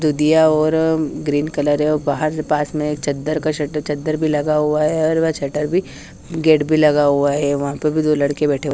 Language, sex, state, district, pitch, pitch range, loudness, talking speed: Hindi, female, Haryana, Charkhi Dadri, 150 Hz, 145-155 Hz, -18 LUFS, 240 wpm